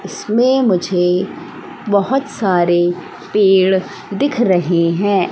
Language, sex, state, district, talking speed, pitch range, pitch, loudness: Hindi, female, Madhya Pradesh, Katni, 90 wpm, 180-250 Hz, 195 Hz, -15 LUFS